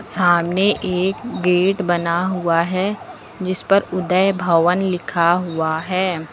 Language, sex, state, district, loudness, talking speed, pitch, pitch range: Hindi, female, Uttar Pradesh, Lucknow, -18 LUFS, 125 wpm, 180 Hz, 170-190 Hz